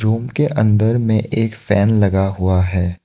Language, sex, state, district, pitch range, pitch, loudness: Hindi, male, Assam, Kamrup Metropolitan, 95-115 Hz, 110 Hz, -16 LUFS